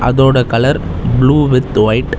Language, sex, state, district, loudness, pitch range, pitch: Tamil, male, Tamil Nadu, Chennai, -12 LUFS, 120-135 Hz, 130 Hz